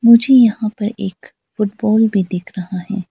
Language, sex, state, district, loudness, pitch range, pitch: Hindi, female, Arunachal Pradesh, Lower Dibang Valley, -16 LUFS, 190-225 Hz, 210 Hz